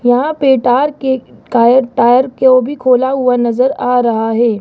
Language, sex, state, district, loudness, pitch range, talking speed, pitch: Hindi, male, Rajasthan, Jaipur, -12 LUFS, 240-265 Hz, 195 wpm, 250 Hz